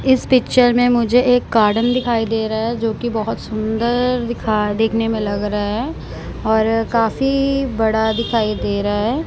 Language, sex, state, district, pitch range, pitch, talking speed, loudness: Hindi, male, Punjab, Kapurthala, 220-245 Hz, 225 Hz, 175 wpm, -17 LUFS